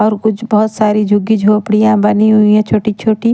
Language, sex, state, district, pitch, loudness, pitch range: Hindi, female, Bihar, Katihar, 215 Hz, -12 LUFS, 210-220 Hz